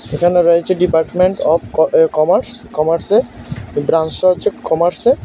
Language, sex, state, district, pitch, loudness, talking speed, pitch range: Bengali, male, Tripura, West Tripura, 175 Hz, -14 LUFS, 115 wpm, 165-185 Hz